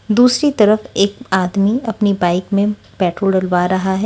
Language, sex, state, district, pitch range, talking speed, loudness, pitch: Hindi, female, Delhi, New Delhi, 185-215 Hz, 160 wpm, -16 LUFS, 200 Hz